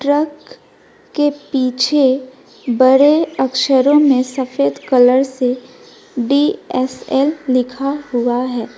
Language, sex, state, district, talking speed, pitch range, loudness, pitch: Hindi, female, West Bengal, Alipurduar, 105 wpm, 255-290 Hz, -15 LUFS, 265 Hz